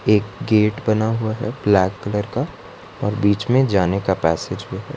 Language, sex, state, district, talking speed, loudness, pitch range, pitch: Hindi, male, Gujarat, Valsad, 195 wpm, -20 LUFS, 95-115 Hz, 105 Hz